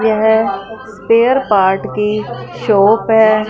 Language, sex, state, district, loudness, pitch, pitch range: Hindi, female, Punjab, Fazilka, -13 LUFS, 215 Hz, 210-225 Hz